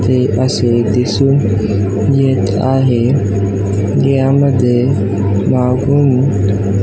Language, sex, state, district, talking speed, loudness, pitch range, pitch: Marathi, male, Maharashtra, Aurangabad, 70 wpm, -13 LUFS, 100-135 Hz, 120 Hz